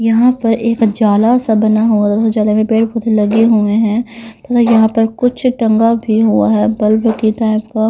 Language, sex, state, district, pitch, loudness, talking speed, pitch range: Hindi, female, Haryana, Rohtak, 225 Hz, -12 LUFS, 195 wpm, 215-230 Hz